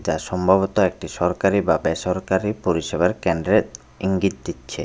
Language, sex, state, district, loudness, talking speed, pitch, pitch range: Bengali, male, Tripura, West Tripura, -21 LUFS, 125 wpm, 95 Hz, 85-95 Hz